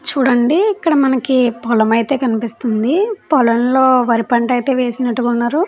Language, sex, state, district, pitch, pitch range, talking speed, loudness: Telugu, female, Andhra Pradesh, Chittoor, 250 Hz, 235-275 Hz, 125 wpm, -15 LUFS